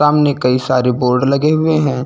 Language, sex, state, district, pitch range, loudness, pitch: Hindi, male, Uttar Pradesh, Lucknow, 125-150 Hz, -14 LUFS, 140 Hz